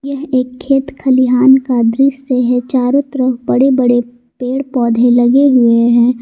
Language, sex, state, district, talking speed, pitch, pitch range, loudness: Hindi, female, Jharkhand, Garhwa, 155 wpm, 255 Hz, 245-270 Hz, -12 LUFS